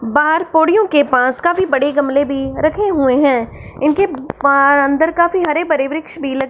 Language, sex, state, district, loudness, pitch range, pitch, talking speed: Hindi, female, Punjab, Fazilka, -14 LUFS, 275-325 Hz, 290 Hz, 195 wpm